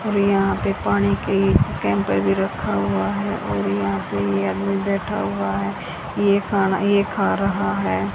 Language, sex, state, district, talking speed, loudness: Hindi, female, Haryana, Jhajjar, 185 wpm, -21 LUFS